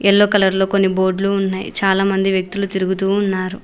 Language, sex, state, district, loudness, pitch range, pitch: Telugu, female, Telangana, Mahabubabad, -17 LUFS, 190-200 Hz, 195 Hz